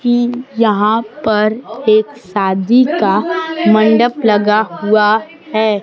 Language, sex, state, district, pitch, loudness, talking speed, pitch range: Hindi, female, Bihar, Kaimur, 220 Hz, -13 LUFS, 105 wpm, 210-245 Hz